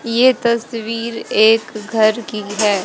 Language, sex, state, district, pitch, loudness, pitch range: Hindi, female, Haryana, Jhajjar, 225 Hz, -16 LUFS, 215-235 Hz